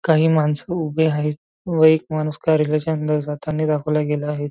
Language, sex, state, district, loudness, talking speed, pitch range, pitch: Marathi, male, Maharashtra, Nagpur, -20 LUFS, 175 wpm, 150-160 Hz, 155 Hz